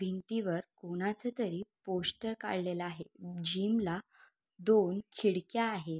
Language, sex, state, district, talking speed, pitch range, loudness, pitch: Marathi, female, Maharashtra, Sindhudurg, 110 wpm, 180-220 Hz, -35 LUFS, 190 Hz